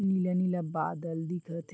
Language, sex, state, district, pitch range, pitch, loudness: Chhattisgarhi, male, Chhattisgarh, Bilaspur, 165-180 Hz, 170 Hz, -32 LUFS